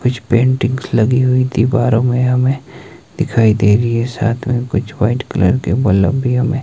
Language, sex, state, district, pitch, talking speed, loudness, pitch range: Hindi, male, Himachal Pradesh, Shimla, 125 Hz, 180 wpm, -15 LUFS, 115-130 Hz